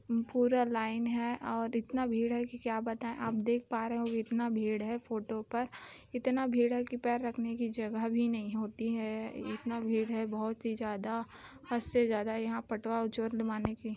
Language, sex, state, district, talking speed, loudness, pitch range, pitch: Hindi, female, Chhattisgarh, Bilaspur, 180 wpm, -34 LUFS, 225-240 Hz, 230 Hz